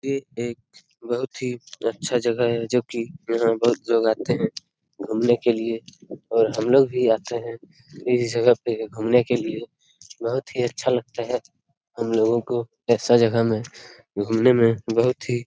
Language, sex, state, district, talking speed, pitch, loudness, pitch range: Hindi, male, Bihar, Darbhanga, 175 wpm, 120 Hz, -22 LUFS, 115-125 Hz